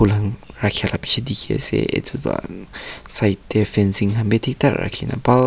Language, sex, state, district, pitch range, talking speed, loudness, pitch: Nagamese, male, Nagaland, Kohima, 105-125 Hz, 165 wpm, -19 LUFS, 110 Hz